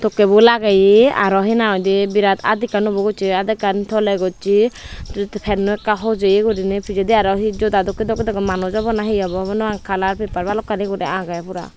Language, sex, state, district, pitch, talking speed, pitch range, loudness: Chakma, female, Tripura, Dhalai, 205 Hz, 200 wpm, 195-215 Hz, -17 LUFS